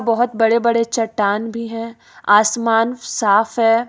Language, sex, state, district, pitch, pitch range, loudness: Hindi, female, Jharkhand, Ranchi, 230 Hz, 225-230 Hz, -17 LUFS